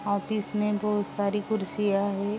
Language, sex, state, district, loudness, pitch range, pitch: Hindi, female, Uttar Pradesh, Jalaun, -28 LUFS, 200-210 Hz, 205 Hz